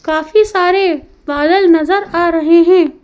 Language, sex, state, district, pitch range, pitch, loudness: Hindi, female, Madhya Pradesh, Bhopal, 320-370 Hz, 340 Hz, -12 LUFS